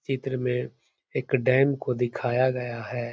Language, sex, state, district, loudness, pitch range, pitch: Hindi, male, Uttar Pradesh, Hamirpur, -26 LUFS, 120-130 Hz, 125 Hz